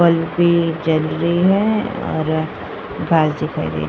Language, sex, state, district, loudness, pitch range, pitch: Hindi, female, Uttar Pradesh, Jyotiba Phule Nagar, -18 LUFS, 155-175 Hz, 165 Hz